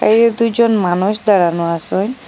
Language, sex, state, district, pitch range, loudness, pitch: Bengali, female, Assam, Hailakandi, 180-230 Hz, -14 LUFS, 210 Hz